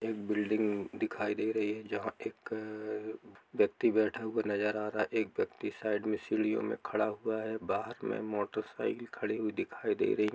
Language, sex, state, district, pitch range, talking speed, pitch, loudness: Hindi, male, Bihar, Sitamarhi, 105-110 Hz, 210 wpm, 110 Hz, -34 LUFS